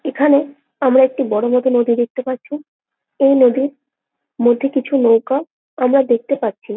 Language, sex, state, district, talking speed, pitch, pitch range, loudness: Bengali, female, West Bengal, Jalpaiguri, 140 wpm, 260 Hz, 240-275 Hz, -16 LUFS